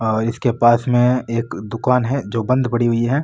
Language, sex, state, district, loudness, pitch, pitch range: Marwari, male, Rajasthan, Nagaur, -18 LUFS, 120 Hz, 115-125 Hz